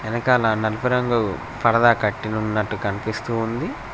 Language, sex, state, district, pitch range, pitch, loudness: Telugu, male, Telangana, Mahabubabad, 105-120 Hz, 115 Hz, -21 LUFS